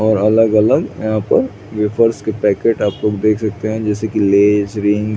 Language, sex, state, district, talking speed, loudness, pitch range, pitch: Hindi, male, Chhattisgarh, Bilaspur, 175 wpm, -15 LUFS, 105-110 Hz, 105 Hz